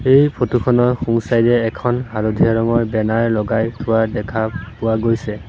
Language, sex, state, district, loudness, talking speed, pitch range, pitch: Assamese, male, Assam, Sonitpur, -17 LUFS, 165 wpm, 110-120 Hz, 115 Hz